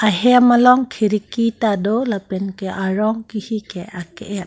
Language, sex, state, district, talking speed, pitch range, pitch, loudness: Karbi, female, Assam, Karbi Anglong, 160 wpm, 195-230 Hz, 215 Hz, -17 LUFS